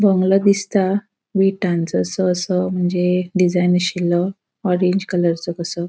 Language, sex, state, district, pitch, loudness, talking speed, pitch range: Konkani, female, Goa, North and South Goa, 180 Hz, -18 LUFS, 110 wpm, 180-195 Hz